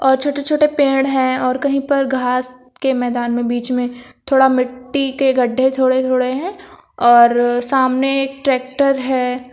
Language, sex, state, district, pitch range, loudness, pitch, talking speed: Hindi, female, Uttar Pradesh, Lucknow, 250-275 Hz, -16 LUFS, 260 Hz, 155 wpm